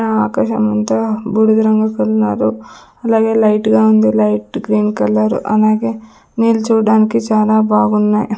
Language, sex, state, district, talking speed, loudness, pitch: Telugu, female, Andhra Pradesh, Sri Satya Sai, 115 wpm, -13 LUFS, 210 Hz